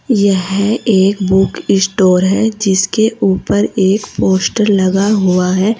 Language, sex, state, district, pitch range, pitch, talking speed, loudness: Hindi, female, Uttar Pradesh, Saharanpur, 190-210 Hz, 195 Hz, 125 wpm, -13 LUFS